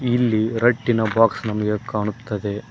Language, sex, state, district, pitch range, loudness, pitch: Kannada, male, Karnataka, Koppal, 105-115 Hz, -21 LUFS, 110 Hz